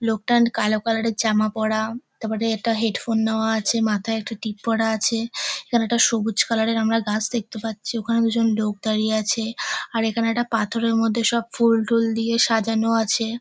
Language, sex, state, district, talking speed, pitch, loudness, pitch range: Bengali, female, West Bengal, North 24 Parganas, 180 wpm, 225 Hz, -22 LUFS, 220-230 Hz